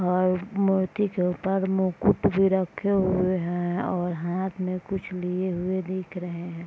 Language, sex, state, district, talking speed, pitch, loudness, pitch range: Hindi, female, Bihar, Purnia, 160 wpm, 185 Hz, -26 LUFS, 180-190 Hz